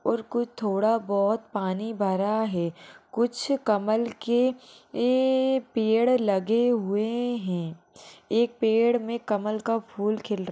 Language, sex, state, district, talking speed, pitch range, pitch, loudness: Hindi, female, Bihar, Purnia, 125 wpm, 205-240 Hz, 225 Hz, -26 LUFS